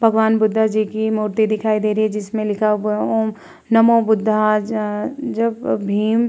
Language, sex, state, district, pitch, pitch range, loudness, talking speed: Hindi, female, Uttar Pradesh, Muzaffarnagar, 215 Hz, 215-220 Hz, -18 LUFS, 190 wpm